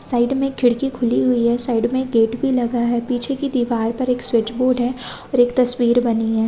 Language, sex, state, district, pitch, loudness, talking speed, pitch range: Hindi, female, Chhattisgarh, Raigarh, 245 Hz, -17 LUFS, 250 wpm, 235-255 Hz